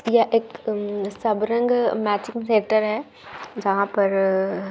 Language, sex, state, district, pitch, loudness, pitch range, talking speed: Hindi, female, Bihar, Gaya, 215 Hz, -22 LUFS, 200-230 Hz, 125 wpm